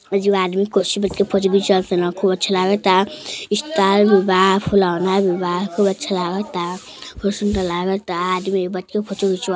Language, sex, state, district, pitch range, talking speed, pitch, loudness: Hindi, female, Uttar Pradesh, Deoria, 185-200 Hz, 175 wpm, 190 Hz, -18 LUFS